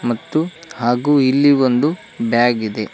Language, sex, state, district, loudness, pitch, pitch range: Kannada, male, Karnataka, Koppal, -16 LUFS, 130 Hz, 120-145 Hz